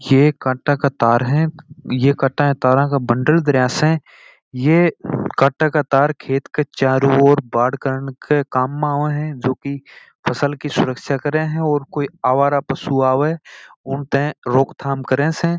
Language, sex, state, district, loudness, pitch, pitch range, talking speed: Marwari, male, Rajasthan, Churu, -18 LUFS, 140 Hz, 135-150 Hz, 160 wpm